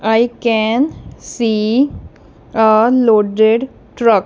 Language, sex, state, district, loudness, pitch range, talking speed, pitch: English, female, Punjab, Kapurthala, -14 LUFS, 220-240 Hz, 85 wpm, 225 Hz